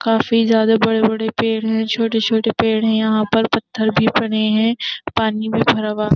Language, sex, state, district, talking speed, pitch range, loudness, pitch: Hindi, female, Uttar Pradesh, Jyotiba Phule Nagar, 205 wpm, 220-225 Hz, -17 LUFS, 225 Hz